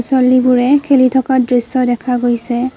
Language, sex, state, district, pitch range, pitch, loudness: Assamese, female, Assam, Kamrup Metropolitan, 245-260 Hz, 255 Hz, -13 LUFS